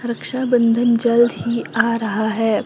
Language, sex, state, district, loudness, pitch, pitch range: Hindi, female, Himachal Pradesh, Shimla, -18 LUFS, 230 Hz, 220-235 Hz